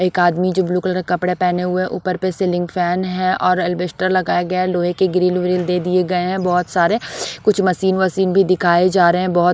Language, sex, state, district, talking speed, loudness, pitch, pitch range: Hindi, female, Odisha, Sambalpur, 245 wpm, -17 LUFS, 180 Hz, 180-185 Hz